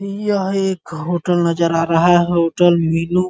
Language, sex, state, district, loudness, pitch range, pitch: Hindi, male, Bihar, Muzaffarpur, -16 LUFS, 165-185 Hz, 175 Hz